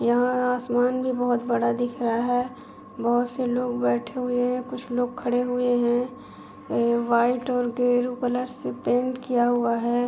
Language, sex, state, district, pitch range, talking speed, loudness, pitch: Hindi, female, Uttar Pradesh, Etah, 240-250 Hz, 170 wpm, -24 LUFS, 245 Hz